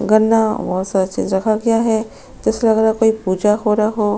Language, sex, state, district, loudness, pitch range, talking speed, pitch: Hindi, female, Chhattisgarh, Sukma, -16 LUFS, 205-220 Hz, 200 wpm, 215 Hz